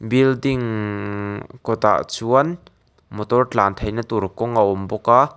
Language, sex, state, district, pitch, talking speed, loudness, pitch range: Mizo, male, Mizoram, Aizawl, 115 Hz, 135 wpm, -20 LUFS, 105-125 Hz